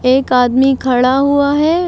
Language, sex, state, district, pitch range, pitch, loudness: Hindi, female, Uttar Pradesh, Lucknow, 255-285 Hz, 265 Hz, -12 LUFS